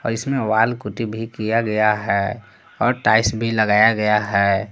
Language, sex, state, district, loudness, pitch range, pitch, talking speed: Hindi, male, Jharkhand, Palamu, -19 LUFS, 105-115 Hz, 110 Hz, 165 wpm